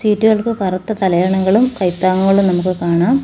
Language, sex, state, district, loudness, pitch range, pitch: Malayalam, female, Kerala, Kollam, -15 LUFS, 185-220 Hz, 190 Hz